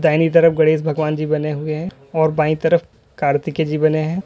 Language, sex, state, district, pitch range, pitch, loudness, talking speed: Hindi, male, Uttar Pradesh, Lalitpur, 155-160 Hz, 155 Hz, -18 LUFS, 210 wpm